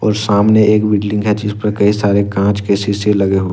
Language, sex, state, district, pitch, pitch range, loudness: Hindi, male, Jharkhand, Ranchi, 105 Hz, 100-105 Hz, -14 LUFS